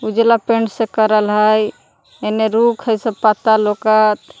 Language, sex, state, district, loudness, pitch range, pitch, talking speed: Magahi, female, Jharkhand, Palamu, -15 LUFS, 215-225 Hz, 220 Hz, 150 wpm